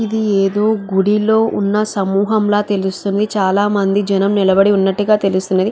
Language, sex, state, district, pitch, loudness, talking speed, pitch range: Telugu, female, Andhra Pradesh, Guntur, 200 Hz, -15 LUFS, 135 wpm, 195-210 Hz